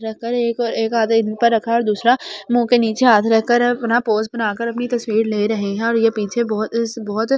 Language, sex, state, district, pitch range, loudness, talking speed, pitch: Hindi, female, Delhi, New Delhi, 220-235 Hz, -18 LUFS, 230 wpm, 230 Hz